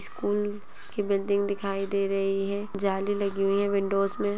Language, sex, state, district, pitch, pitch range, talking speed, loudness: Hindi, female, Chhattisgarh, Sarguja, 200 Hz, 195-205 Hz, 180 wpm, -27 LUFS